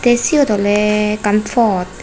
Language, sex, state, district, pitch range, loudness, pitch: Chakma, female, Tripura, West Tripura, 205-240 Hz, -14 LUFS, 210 Hz